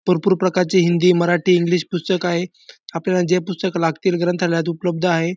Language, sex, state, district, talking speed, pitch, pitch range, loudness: Marathi, male, Maharashtra, Dhule, 155 wpm, 180 Hz, 170-185 Hz, -18 LUFS